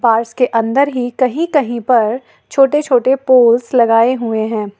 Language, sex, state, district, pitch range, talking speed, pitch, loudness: Hindi, female, Jharkhand, Ranchi, 230-265 Hz, 150 wpm, 245 Hz, -13 LUFS